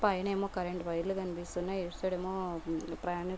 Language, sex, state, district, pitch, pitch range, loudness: Telugu, female, Andhra Pradesh, Guntur, 180 Hz, 175-190 Hz, -36 LUFS